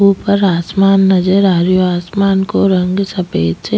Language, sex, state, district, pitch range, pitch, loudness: Rajasthani, female, Rajasthan, Nagaur, 180-195 Hz, 190 Hz, -13 LUFS